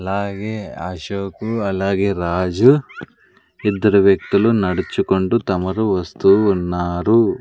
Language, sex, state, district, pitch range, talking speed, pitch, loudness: Telugu, male, Andhra Pradesh, Sri Satya Sai, 90-105 Hz, 80 wpm, 100 Hz, -18 LUFS